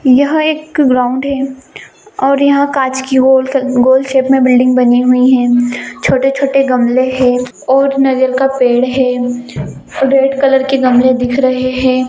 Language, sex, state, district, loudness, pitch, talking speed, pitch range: Hindi, female, Bihar, East Champaran, -11 LUFS, 260 Hz, 165 wpm, 255-270 Hz